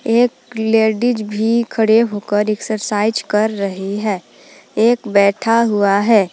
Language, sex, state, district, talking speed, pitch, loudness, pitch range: Hindi, female, Jharkhand, Palamu, 135 wpm, 215 Hz, -16 LUFS, 205-230 Hz